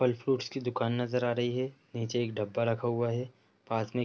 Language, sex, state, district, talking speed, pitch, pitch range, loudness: Hindi, male, Bihar, East Champaran, 295 wpm, 120 Hz, 115-125 Hz, -32 LUFS